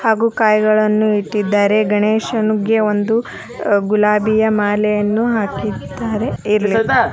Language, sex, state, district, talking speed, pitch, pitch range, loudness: Kannada, male, Karnataka, Dharwad, 75 wpm, 215 Hz, 210-220 Hz, -16 LUFS